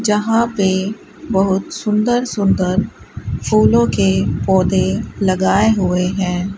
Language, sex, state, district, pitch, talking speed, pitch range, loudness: Hindi, female, Rajasthan, Bikaner, 190 Hz, 100 wpm, 180-205 Hz, -16 LUFS